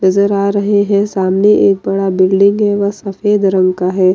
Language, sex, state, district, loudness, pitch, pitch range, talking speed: Hindi, female, Bihar, Kishanganj, -12 LUFS, 200 Hz, 190-205 Hz, 200 wpm